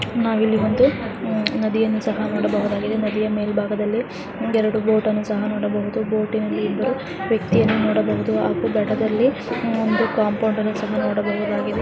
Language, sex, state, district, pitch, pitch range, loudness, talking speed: Kannada, female, Karnataka, Chamarajanagar, 215 Hz, 210-220 Hz, -21 LUFS, 110 wpm